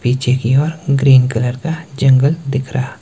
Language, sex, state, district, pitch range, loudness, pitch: Hindi, male, Himachal Pradesh, Shimla, 130-140 Hz, -14 LUFS, 135 Hz